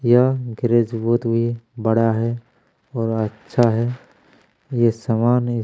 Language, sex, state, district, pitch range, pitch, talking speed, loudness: Hindi, male, Chhattisgarh, Kabirdham, 115-120 Hz, 115 Hz, 115 wpm, -20 LUFS